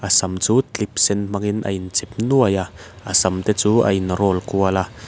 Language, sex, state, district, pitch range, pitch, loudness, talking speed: Mizo, male, Mizoram, Aizawl, 95-110 Hz, 100 Hz, -19 LUFS, 235 wpm